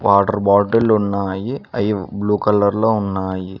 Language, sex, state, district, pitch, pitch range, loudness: Telugu, male, Telangana, Mahabubabad, 100 Hz, 100-105 Hz, -17 LUFS